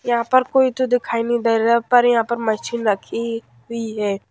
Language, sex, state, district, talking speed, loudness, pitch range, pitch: Hindi, female, Haryana, Jhajjar, 210 wpm, -19 LUFS, 225-245 Hz, 235 Hz